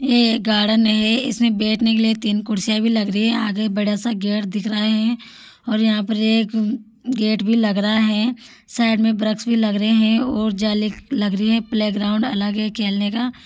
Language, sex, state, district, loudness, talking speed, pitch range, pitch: Hindi, female, Rajasthan, Churu, -19 LUFS, 205 wpm, 215-230 Hz, 220 Hz